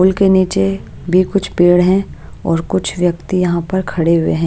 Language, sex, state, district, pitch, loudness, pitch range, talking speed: Hindi, female, Maharashtra, Washim, 180 Hz, -15 LUFS, 165-190 Hz, 200 wpm